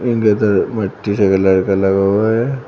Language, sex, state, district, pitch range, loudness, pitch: Hindi, male, Uttar Pradesh, Shamli, 95-110 Hz, -15 LUFS, 100 Hz